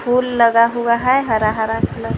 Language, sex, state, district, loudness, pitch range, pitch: Hindi, female, Jharkhand, Garhwa, -16 LUFS, 220-245 Hz, 235 Hz